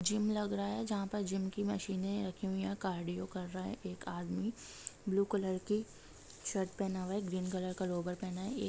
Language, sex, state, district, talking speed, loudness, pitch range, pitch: Hindi, female, Jharkhand, Jamtara, 215 wpm, -38 LUFS, 185-205 Hz, 195 Hz